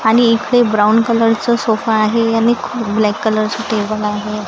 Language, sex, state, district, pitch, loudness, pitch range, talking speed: Marathi, female, Maharashtra, Gondia, 220 Hz, -14 LUFS, 215-230 Hz, 185 wpm